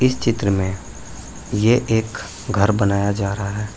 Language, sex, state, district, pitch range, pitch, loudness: Hindi, male, Uttar Pradesh, Saharanpur, 100-115 Hz, 105 Hz, -20 LUFS